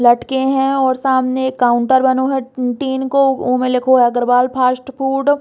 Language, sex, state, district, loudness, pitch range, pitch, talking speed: Bundeli, female, Uttar Pradesh, Hamirpur, -15 LUFS, 250-270 Hz, 260 Hz, 190 wpm